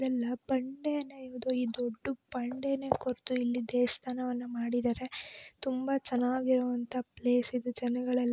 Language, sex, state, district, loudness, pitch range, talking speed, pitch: Kannada, female, Karnataka, Belgaum, -33 LUFS, 245-260 Hz, 95 wpm, 250 Hz